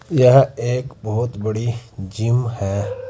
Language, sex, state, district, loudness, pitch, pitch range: Hindi, male, Uttar Pradesh, Saharanpur, -19 LUFS, 120 Hz, 110-125 Hz